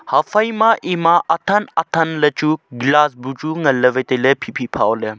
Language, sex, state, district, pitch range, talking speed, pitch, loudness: Wancho, male, Arunachal Pradesh, Longding, 135-170 Hz, 230 wpm, 155 Hz, -16 LUFS